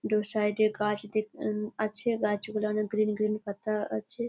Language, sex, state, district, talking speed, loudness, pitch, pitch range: Bengali, female, West Bengal, Jalpaiguri, 195 wpm, -30 LUFS, 215 Hz, 210-215 Hz